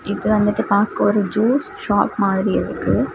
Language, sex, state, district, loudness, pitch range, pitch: Tamil, female, Tamil Nadu, Kanyakumari, -18 LUFS, 200-220 Hz, 205 Hz